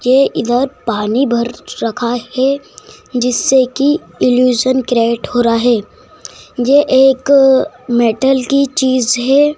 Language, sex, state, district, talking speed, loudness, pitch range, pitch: Hindi, male, Madhya Pradesh, Dhar, 120 wpm, -13 LUFS, 240-275 Hz, 255 Hz